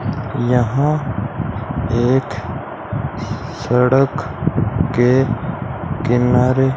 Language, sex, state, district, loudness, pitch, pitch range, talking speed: Hindi, male, Rajasthan, Bikaner, -18 LUFS, 125 Hz, 120-135 Hz, 45 wpm